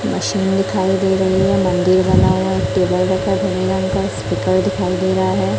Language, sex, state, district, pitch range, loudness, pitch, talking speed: Hindi, female, Chhattisgarh, Raipur, 185-190 Hz, -16 LUFS, 190 Hz, 170 wpm